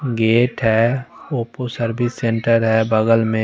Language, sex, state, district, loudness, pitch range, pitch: Hindi, male, Chandigarh, Chandigarh, -18 LUFS, 115-120 Hz, 115 Hz